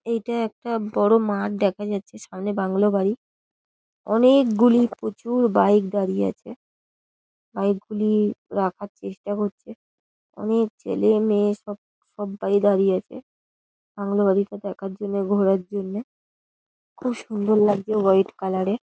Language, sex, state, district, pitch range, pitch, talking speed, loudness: Bengali, female, West Bengal, Paschim Medinipur, 195-215 Hz, 205 Hz, 120 wpm, -22 LUFS